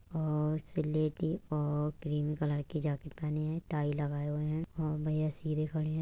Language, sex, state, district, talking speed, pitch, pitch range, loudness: Hindi, female, Uttar Pradesh, Budaun, 180 wpm, 155 Hz, 150-155 Hz, -35 LUFS